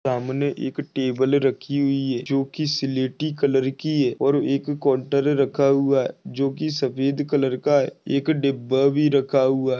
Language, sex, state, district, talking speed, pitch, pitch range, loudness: Hindi, male, Maharashtra, Dhule, 165 wpm, 140 Hz, 135-140 Hz, -22 LUFS